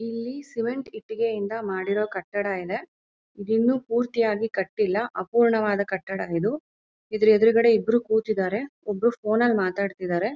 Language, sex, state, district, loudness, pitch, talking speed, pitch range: Kannada, female, Karnataka, Mysore, -24 LUFS, 220 Hz, 120 wpm, 200-235 Hz